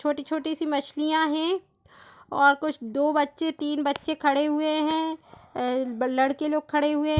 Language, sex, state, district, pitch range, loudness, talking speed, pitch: Hindi, female, Chhattisgarh, Raigarh, 285-315 Hz, -25 LUFS, 165 wpm, 300 Hz